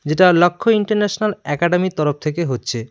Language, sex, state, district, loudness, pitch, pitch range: Bengali, male, West Bengal, Cooch Behar, -17 LUFS, 170 Hz, 150-205 Hz